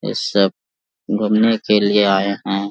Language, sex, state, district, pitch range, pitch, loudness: Hindi, male, Jharkhand, Sahebganj, 95-105 Hz, 100 Hz, -17 LUFS